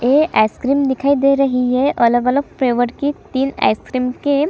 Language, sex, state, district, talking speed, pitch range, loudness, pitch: Hindi, female, Chhattisgarh, Kabirdham, 185 wpm, 250-280 Hz, -16 LUFS, 265 Hz